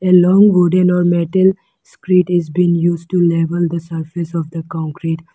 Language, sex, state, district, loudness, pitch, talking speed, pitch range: English, female, Arunachal Pradesh, Lower Dibang Valley, -15 LUFS, 175 Hz, 180 wpm, 165-180 Hz